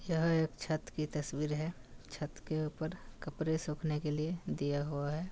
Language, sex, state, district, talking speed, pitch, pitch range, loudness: Hindi, male, Bihar, Kishanganj, 180 wpm, 155 Hz, 150-160 Hz, -37 LUFS